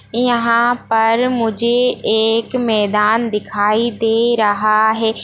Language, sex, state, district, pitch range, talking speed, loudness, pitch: Hindi, female, Bihar, Darbhanga, 215-235 Hz, 105 wpm, -15 LUFS, 225 Hz